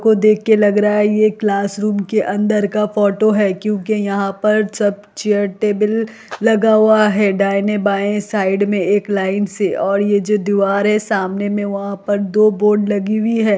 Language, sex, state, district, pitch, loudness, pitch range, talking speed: Hindi, female, Bihar, Kishanganj, 205 Hz, -16 LUFS, 200-215 Hz, 195 wpm